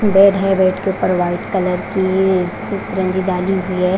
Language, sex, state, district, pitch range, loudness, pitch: Hindi, female, Punjab, Fazilka, 180-190 Hz, -16 LUFS, 185 Hz